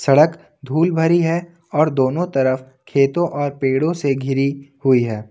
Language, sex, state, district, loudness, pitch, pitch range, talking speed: Hindi, male, Jharkhand, Ranchi, -18 LUFS, 140 Hz, 135-165 Hz, 160 wpm